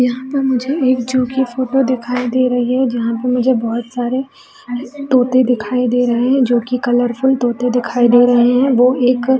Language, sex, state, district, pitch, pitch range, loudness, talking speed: Hindi, female, Bihar, Jamui, 250 Hz, 245-260 Hz, -15 LUFS, 210 wpm